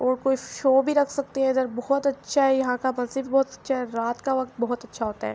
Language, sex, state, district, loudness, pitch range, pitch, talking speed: Urdu, female, Andhra Pradesh, Anantapur, -24 LUFS, 245-270 Hz, 260 Hz, 260 wpm